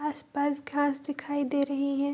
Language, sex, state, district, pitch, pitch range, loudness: Hindi, female, Bihar, Bhagalpur, 285 Hz, 280-290 Hz, -30 LUFS